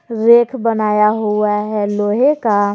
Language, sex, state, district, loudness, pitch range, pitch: Hindi, female, Jharkhand, Garhwa, -14 LUFS, 210-230 Hz, 215 Hz